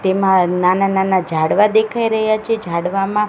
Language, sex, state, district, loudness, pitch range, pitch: Gujarati, female, Gujarat, Gandhinagar, -16 LUFS, 185-215 Hz, 195 Hz